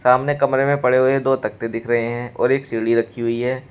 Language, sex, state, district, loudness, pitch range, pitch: Hindi, male, Uttar Pradesh, Shamli, -19 LUFS, 115-135 Hz, 125 Hz